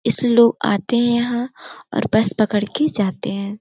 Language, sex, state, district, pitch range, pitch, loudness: Hindi, female, Uttar Pradesh, Gorakhpur, 205-240 Hz, 225 Hz, -17 LUFS